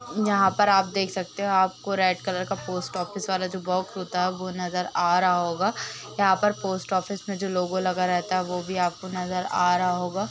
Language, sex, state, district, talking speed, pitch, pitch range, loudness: Hindi, female, Uttar Pradesh, Jalaun, 220 wpm, 185 Hz, 180-195 Hz, -25 LUFS